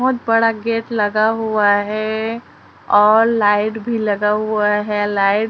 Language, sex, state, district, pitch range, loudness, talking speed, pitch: Hindi, female, Chhattisgarh, Raipur, 210-225 Hz, -16 LUFS, 155 wpm, 215 Hz